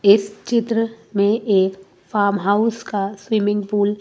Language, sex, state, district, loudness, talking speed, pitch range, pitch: Hindi, female, Madhya Pradesh, Bhopal, -19 LUFS, 150 wpm, 200-220 Hz, 205 Hz